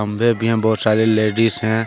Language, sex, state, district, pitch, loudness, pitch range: Hindi, male, Jharkhand, Deoghar, 110 Hz, -17 LUFS, 110-115 Hz